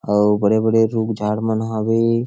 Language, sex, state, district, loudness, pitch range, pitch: Chhattisgarhi, male, Chhattisgarh, Sarguja, -18 LUFS, 105-115 Hz, 110 Hz